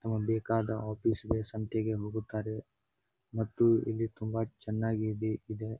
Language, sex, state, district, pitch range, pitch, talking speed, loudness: Kannada, male, Karnataka, Bijapur, 110-115 Hz, 110 Hz, 105 wpm, -33 LUFS